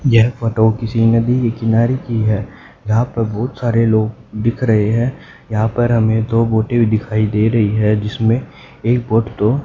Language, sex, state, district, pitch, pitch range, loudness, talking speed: Hindi, male, Haryana, Jhajjar, 115 Hz, 110-120 Hz, -16 LUFS, 185 wpm